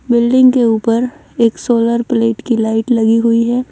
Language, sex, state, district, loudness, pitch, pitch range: Hindi, female, Haryana, Jhajjar, -13 LUFS, 235 Hz, 230-245 Hz